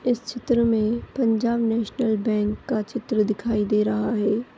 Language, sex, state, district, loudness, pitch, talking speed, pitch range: Hindi, female, Maharashtra, Solapur, -23 LUFS, 225 Hz, 155 wpm, 215-235 Hz